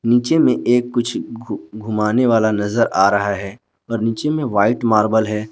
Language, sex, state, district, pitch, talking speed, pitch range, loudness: Hindi, male, Jharkhand, Garhwa, 110 Hz, 185 wpm, 105-120 Hz, -17 LUFS